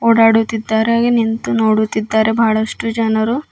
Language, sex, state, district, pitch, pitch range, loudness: Kannada, female, Karnataka, Bidar, 225 Hz, 220-230 Hz, -15 LUFS